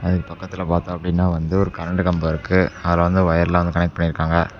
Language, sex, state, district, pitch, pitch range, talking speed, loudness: Tamil, male, Tamil Nadu, Namakkal, 85 Hz, 85-90 Hz, 210 wpm, -20 LUFS